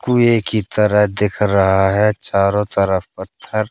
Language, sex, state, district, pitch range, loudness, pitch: Hindi, male, Madhya Pradesh, Katni, 100-105 Hz, -16 LUFS, 105 Hz